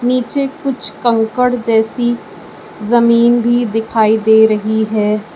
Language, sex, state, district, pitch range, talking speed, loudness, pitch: Hindi, female, Uttar Pradesh, Lucknow, 220-240 Hz, 110 wpm, -13 LUFS, 235 Hz